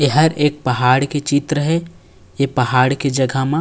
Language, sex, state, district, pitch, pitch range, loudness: Chhattisgarhi, male, Chhattisgarh, Raigarh, 140 Hz, 130-150 Hz, -17 LUFS